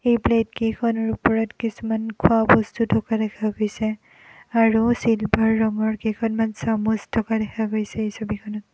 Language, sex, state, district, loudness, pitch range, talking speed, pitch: Assamese, female, Assam, Kamrup Metropolitan, -22 LUFS, 215-225 Hz, 135 wpm, 220 Hz